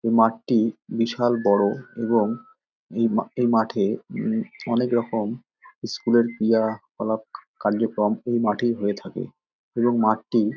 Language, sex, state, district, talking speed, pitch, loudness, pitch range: Bengali, male, West Bengal, Dakshin Dinajpur, 120 wpm, 115 Hz, -23 LUFS, 110-120 Hz